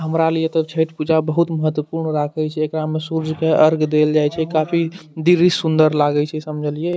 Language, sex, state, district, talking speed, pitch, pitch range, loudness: Maithili, male, Bihar, Madhepura, 205 wpm, 155 Hz, 155-160 Hz, -18 LUFS